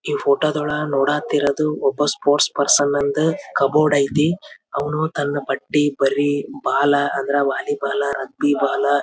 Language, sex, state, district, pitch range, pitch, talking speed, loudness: Kannada, male, Karnataka, Belgaum, 140-150 Hz, 145 Hz, 75 wpm, -19 LUFS